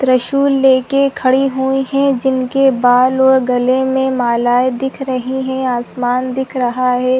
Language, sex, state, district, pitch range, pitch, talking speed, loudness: Hindi, female, Chhattisgarh, Sarguja, 250-265 Hz, 260 Hz, 150 wpm, -14 LUFS